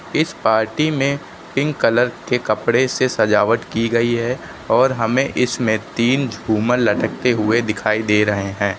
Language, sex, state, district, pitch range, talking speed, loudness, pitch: Hindi, male, Uttar Pradesh, Lucknow, 110-125 Hz, 155 wpm, -18 LUFS, 115 Hz